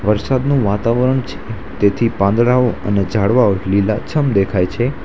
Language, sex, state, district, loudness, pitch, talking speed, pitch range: Gujarati, male, Gujarat, Valsad, -16 LUFS, 105 Hz, 120 wpm, 100-125 Hz